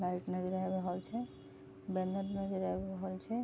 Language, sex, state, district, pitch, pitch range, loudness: Maithili, female, Bihar, Vaishali, 185 Hz, 180-195 Hz, -39 LUFS